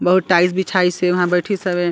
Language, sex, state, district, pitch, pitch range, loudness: Chhattisgarhi, female, Chhattisgarh, Sarguja, 180 Hz, 180-185 Hz, -17 LUFS